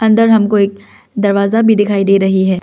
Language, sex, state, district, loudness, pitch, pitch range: Hindi, female, Arunachal Pradesh, Lower Dibang Valley, -12 LUFS, 200 Hz, 195-220 Hz